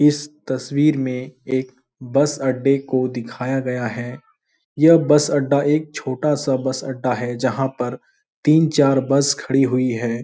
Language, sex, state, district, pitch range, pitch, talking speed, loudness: Hindi, male, Bihar, Jahanabad, 125-145 Hz, 135 Hz, 160 wpm, -19 LUFS